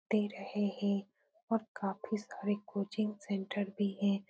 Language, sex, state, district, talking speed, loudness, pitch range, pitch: Hindi, female, Bihar, Saran, 140 wpm, -37 LUFS, 200-215 Hz, 205 Hz